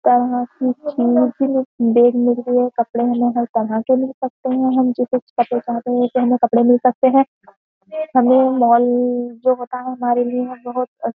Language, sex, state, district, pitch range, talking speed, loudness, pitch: Hindi, female, Uttar Pradesh, Jyotiba Phule Nagar, 240-255 Hz, 165 wpm, -17 LUFS, 245 Hz